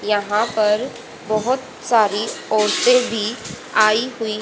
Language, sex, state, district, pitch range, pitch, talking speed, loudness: Hindi, female, Haryana, Jhajjar, 215-240 Hz, 215 Hz, 110 wpm, -19 LUFS